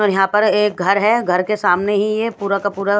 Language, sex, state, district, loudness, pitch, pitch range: Hindi, female, Haryana, Rohtak, -16 LUFS, 205 Hz, 195-210 Hz